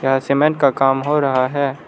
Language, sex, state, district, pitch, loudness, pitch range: Hindi, male, Arunachal Pradesh, Lower Dibang Valley, 140 Hz, -16 LUFS, 135-145 Hz